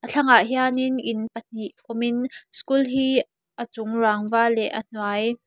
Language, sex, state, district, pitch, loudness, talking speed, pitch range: Mizo, female, Mizoram, Aizawl, 235 Hz, -22 LUFS, 155 wpm, 220-255 Hz